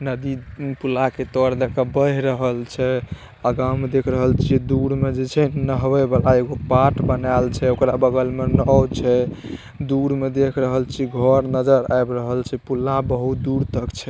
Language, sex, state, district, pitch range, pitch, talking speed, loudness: Maithili, male, Bihar, Saharsa, 125-135 Hz, 130 Hz, 185 wpm, -20 LUFS